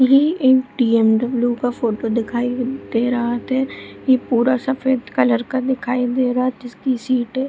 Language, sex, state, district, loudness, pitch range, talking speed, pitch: Hindi, female, Bihar, Supaul, -19 LUFS, 240-260 Hz, 160 wpm, 250 Hz